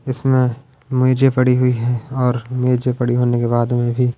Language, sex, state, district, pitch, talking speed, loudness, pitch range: Hindi, male, Punjab, Pathankot, 125 Hz, 185 wpm, -17 LUFS, 120-130 Hz